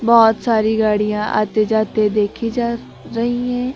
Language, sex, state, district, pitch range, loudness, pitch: Hindi, female, Uttar Pradesh, Lucknow, 215-235 Hz, -17 LUFS, 220 Hz